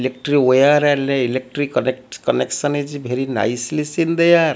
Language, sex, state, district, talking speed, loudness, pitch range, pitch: English, male, Odisha, Malkangiri, 120 wpm, -18 LUFS, 130-145 Hz, 140 Hz